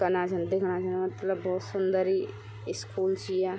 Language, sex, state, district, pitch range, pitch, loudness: Garhwali, female, Uttarakhand, Tehri Garhwal, 180-190 Hz, 185 Hz, -30 LUFS